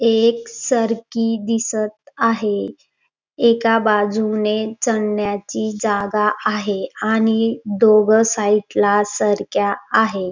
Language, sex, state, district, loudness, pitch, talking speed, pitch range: Marathi, female, Maharashtra, Dhule, -18 LUFS, 215 Hz, 85 wpm, 210-225 Hz